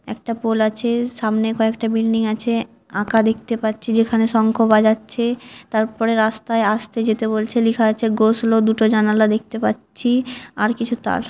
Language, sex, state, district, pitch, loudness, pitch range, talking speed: Bengali, female, West Bengal, Dakshin Dinajpur, 225 Hz, -19 LUFS, 220-230 Hz, 160 wpm